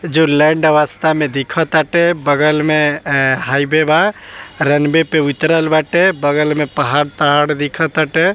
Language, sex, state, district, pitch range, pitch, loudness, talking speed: Bhojpuri, male, Bihar, East Champaran, 145-160 Hz, 155 Hz, -14 LUFS, 165 wpm